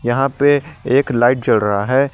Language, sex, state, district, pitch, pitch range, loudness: Hindi, male, Jharkhand, Garhwa, 135 Hz, 120-140 Hz, -15 LUFS